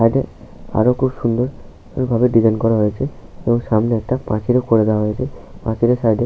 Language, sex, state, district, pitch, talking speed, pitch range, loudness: Bengali, male, West Bengal, Paschim Medinipur, 115 Hz, 190 wpm, 110-125 Hz, -18 LUFS